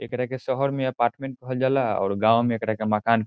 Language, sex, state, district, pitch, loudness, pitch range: Bhojpuri, male, Bihar, Saran, 125 Hz, -24 LUFS, 110-130 Hz